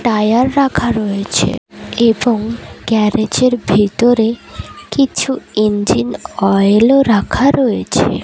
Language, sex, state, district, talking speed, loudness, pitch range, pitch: Bengali, female, Odisha, Malkangiri, 95 wpm, -14 LUFS, 210-245 Hz, 225 Hz